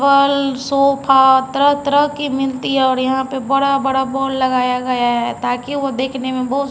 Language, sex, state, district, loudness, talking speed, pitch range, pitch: Hindi, female, Bihar, Patna, -16 LUFS, 180 wpm, 260-275 Hz, 270 Hz